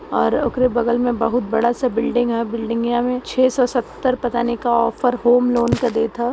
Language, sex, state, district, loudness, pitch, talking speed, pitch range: Hindi, male, Uttar Pradesh, Varanasi, -19 LUFS, 240 Hz, 200 wpm, 235-250 Hz